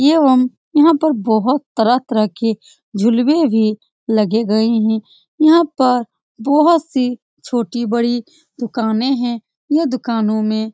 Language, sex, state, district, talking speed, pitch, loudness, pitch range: Hindi, female, Bihar, Supaul, 125 wpm, 240 Hz, -16 LUFS, 225-285 Hz